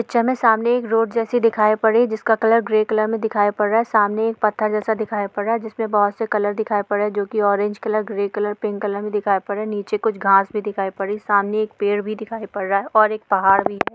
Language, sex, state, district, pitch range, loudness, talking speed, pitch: Hindi, female, Jharkhand, Sahebganj, 205-220 Hz, -19 LUFS, 295 wpm, 215 Hz